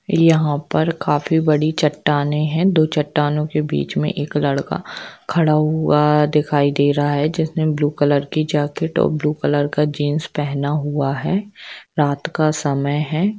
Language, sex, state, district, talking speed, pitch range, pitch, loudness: Hindi, female, Jharkhand, Sahebganj, 160 wpm, 145-155 Hz, 150 Hz, -18 LUFS